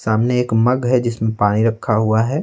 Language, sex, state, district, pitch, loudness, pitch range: Hindi, male, Bihar, Patna, 115 Hz, -17 LUFS, 110-125 Hz